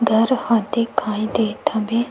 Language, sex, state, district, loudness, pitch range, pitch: Chhattisgarhi, female, Chhattisgarh, Sukma, -20 LUFS, 220-235 Hz, 225 Hz